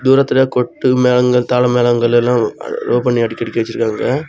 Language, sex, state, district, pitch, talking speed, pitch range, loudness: Tamil, male, Tamil Nadu, Kanyakumari, 125 Hz, 155 wpm, 125-130 Hz, -14 LUFS